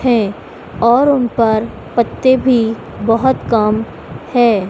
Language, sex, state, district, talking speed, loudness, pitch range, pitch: Hindi, female, Madhya Pradesh, Dhar, 115 wpm, -14 LUFS, 220-250 Hz, 230 Hz